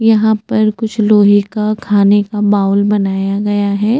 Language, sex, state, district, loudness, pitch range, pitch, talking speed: Hindi, female, Chhattisgarh, Bastar, -13 LUFS, 205-215 Hz, 210 Hz, 165 wpm